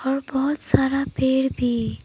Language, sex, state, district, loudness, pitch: Hindi, female, Arunachal Pradesh, Papum Pare, -22 LUFS, 200 Hz